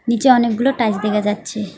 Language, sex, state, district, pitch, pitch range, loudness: Bengali, female, West Bengal, Alipurduar, 225 Hz, 210-240 Hz, -17 LUFS